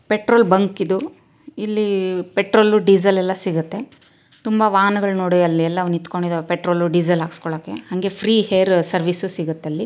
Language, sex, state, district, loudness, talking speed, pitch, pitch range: Kannada, female, Karnataka, Chamarajanagar, -18 LUFS, 130 wpm, 190 Hz, 175-200 Hz